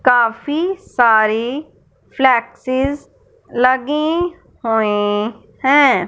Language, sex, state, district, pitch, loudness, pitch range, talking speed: Hindi, male, Punjab, Fazilka, 255 Hz, -16 LUFS, 230-290 Hz, 60 wpm